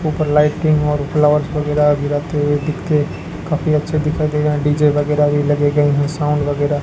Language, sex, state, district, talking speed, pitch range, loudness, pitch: Hindi, male, Rajasthan, Bikaner, 200 wpm, 145-150 Hz, -16 LUFS, 150 Hz